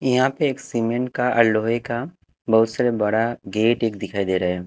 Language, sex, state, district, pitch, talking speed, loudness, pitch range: Hindi, male, Haryana, Jhajjar, 115 Hz, 220 wpm, -21 LUFS, 110-125 Hz